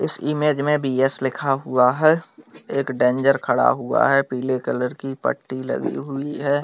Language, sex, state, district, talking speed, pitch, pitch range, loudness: Hindi, male, Bihar, Bhagalpur, 180 wpm, 135 Hz, 130-145 Hz, -21 LUFS